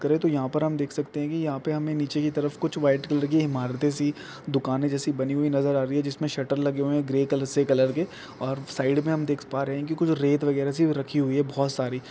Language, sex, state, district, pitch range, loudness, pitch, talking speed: Hindi, male, Jharkhand, Jamtara, 140-150 Hz, -26 LUFS, 145 Hz, 260 wpm